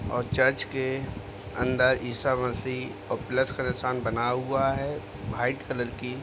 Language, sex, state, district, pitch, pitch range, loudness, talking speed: Hindi, male, Uttar Pradesh, Deoria, 125 Hz, 120-130 Hz, -28 LUFS, 155 wpm